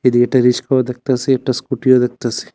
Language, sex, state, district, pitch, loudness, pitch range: Bengali, male, Tripura, West Tripura, 125 Hz, -16 LUFS, 125-130 Hz